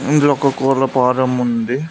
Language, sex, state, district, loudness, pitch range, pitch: Telugu, male, Telangana, Mahabubabad, -16 LUFS, 125-140 Hz, 135 Hz